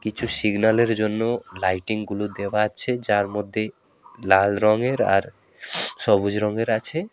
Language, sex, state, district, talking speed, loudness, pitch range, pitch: Bengali, male, West Bengal, Alipurduar, 125 wpm, -21 LUFS, 100-115 Hz, 105 Hz